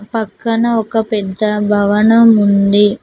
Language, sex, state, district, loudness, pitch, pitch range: Telugu, female, Telangana, Mahabubabad, -13 LUFS, 215 Hz, 205-225 Hz